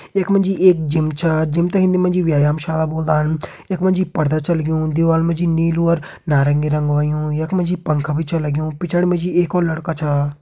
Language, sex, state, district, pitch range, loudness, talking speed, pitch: Hindi, male, Uttarakhand, Uttarkashi, 155-175 Hz, -18 LUFS, 230 wpm, 160 Hz